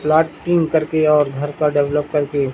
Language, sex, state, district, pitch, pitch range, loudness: Hindi, male, Madhya Pradesh, Umaria, 150 Hz, 145-160 Hz, -17 LUFS